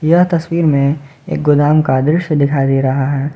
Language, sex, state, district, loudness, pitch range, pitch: Hindi, male, Jharkhand, Garhwa, -14 LUFS, 140-160 Hz, 145 Hz